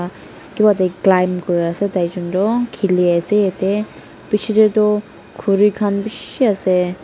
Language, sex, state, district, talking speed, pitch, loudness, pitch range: Nagamese, female, Nagaland, Dimapur, 145 wpm, 200 Hz, -17 LUFS, 180-210 Hz